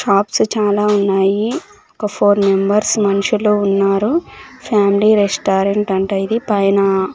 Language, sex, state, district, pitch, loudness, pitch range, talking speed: Telugu, female, Andhra Pradesh, Sri Satya Sai, 205 Hz, -15 LUFS, 195-210 Hz, 110 wpm